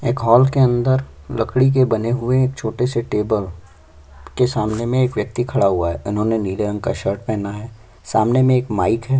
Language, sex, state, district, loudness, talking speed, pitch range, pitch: Hindi, male, Chhattisgarh, Sukma, -18 LUFS, 210 wpm, 105-125 Hz, 115 Hz